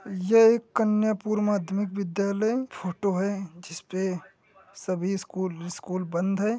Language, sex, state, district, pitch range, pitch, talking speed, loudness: Hindi, male, Uttar Pradesh, Hamirpur, 185-215 Hz, 195 Hz, 120 wpm, -26 LUFS